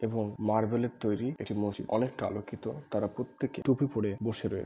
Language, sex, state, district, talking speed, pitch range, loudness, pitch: Bengali, male, West Bengal, Malda, 165 wpm, 105-125 Hz, -32 LUFS, 110 Hz